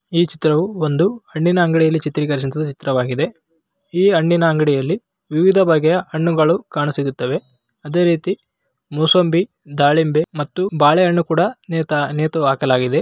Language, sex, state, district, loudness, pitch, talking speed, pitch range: Kannada, male, Karnataka, Raichur, -17 LUFS, 160 Hz, 115 wpm, 150-175 Hz